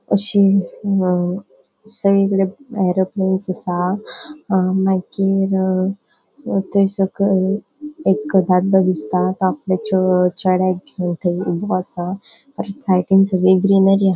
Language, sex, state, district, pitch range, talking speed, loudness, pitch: Konkani, female, Goa, North and South Goa, 185-195 Hz, 95 wpm, -17 LUFS, 190 Hz